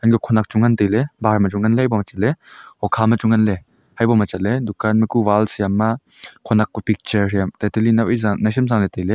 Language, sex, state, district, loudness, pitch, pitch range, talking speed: Wancho, male, Arunachal Pradesh, Longding, -18 LUFS, 110 Hz, 105-115 Hz, 240 wpm